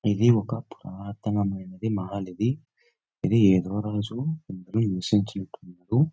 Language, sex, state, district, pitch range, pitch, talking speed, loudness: Telugu, male, Karnataka, Bellary, 95-115 Hz, 105 Hz, 90 wpm, -26 LUFS